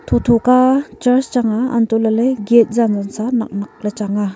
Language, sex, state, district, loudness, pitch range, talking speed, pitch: Wancho, female, Arunachal Pradesh, Longding, -15 LUFS, 215-250 Hz, 190 wpm, 230 Hz